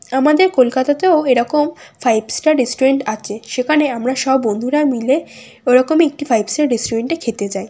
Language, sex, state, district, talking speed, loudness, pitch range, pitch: Bengali, female, West Bengal, Kolkata, 150 wpm, -16 LUFS, 235-295 Hz, 260 Hz